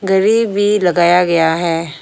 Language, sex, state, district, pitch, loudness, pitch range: Hindi, female, Arunachal Pradesh, Longding, 180 Hz, -13 LUFS, 170-200 Hz